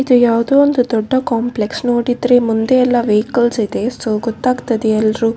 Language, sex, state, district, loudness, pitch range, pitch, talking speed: Kannada, female, Karnataka, Dakshina Kannada, -15 LUFS, 225-250 Hz, 240 Hz, 155 wpm